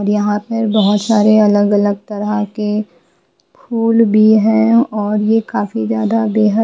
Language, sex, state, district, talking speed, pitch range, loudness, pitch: Hindi, female, Bihar, Patna, 125 wpm, 205-225 Hz, -14 LUFS, 215 Hz